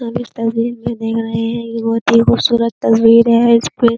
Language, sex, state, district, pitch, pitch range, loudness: Hindi, female, Uttar Pradesh, Jyotiba Phule Nagar, 230 Hz, 230-235 Hz, -14 LUFS